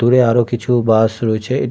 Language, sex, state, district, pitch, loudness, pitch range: Bengali, male, West Bengal, Kolkata, 120 Hz, -15 LUFS, 110-125 Hz